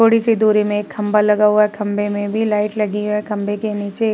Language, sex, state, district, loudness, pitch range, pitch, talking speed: Hindi, female, Uttar Pradesh, Muzaffarnagar, -17 LUFS, 205-215 Hz, 210 Hz, 275 wpm